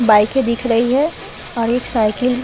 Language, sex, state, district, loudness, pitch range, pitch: Hindi, female, Uttar Pradesh, Budaun, -16 LUFS, 230-250 Hz, 240 Hz